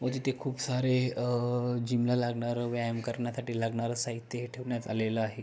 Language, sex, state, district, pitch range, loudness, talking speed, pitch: Marathi, male, Maharashtra, Pune, 120-125 Hz, -32 LUFS, 175 wpm, 120 Hz